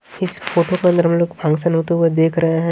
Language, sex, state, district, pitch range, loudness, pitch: Hindi, male, Haryana, Jhajjar, 165-170 Hz, -17 LUFS, 170 Hz